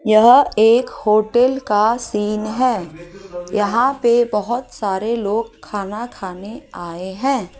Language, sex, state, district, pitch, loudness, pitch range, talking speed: Hindi, female, Rajasthan, Jaipur, 215 Hz, -17 LUFS, 200-240 Hz, 120 wpm